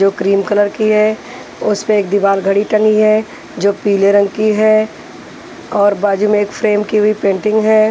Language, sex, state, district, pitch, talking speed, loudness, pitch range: Hindi, female, Punjab, Pathankot, 210 Hz, 195 wpm, -13 LUFS, 200-215 Hz